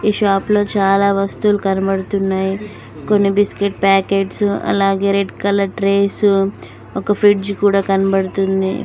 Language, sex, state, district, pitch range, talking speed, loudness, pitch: Telugu, female, Telangana, Mahabubabad, 195-200 Hz, 115 wpm, -16 LUFS, 195 Hz